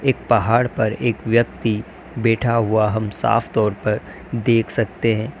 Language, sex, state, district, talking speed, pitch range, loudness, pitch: Hindi, male, Uttar Pradesh, Lalitpur, 155 wpm, 110-120 Hz, -19 LUFS, 115 Hz